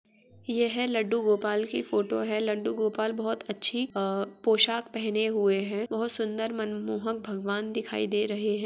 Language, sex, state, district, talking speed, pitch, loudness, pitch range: Hindi, female, Uttar Pradesh, Etah, 175 wpm, 215 Hz, -28 LUFS, 205-225 Hz